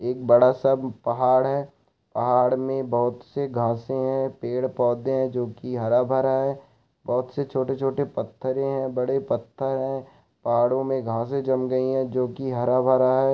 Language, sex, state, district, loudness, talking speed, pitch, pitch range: Hindi, male, Chhattisgarh, Raigarh, -24 LUFS, 145 wpm, 130 Hz, 125-135 Hz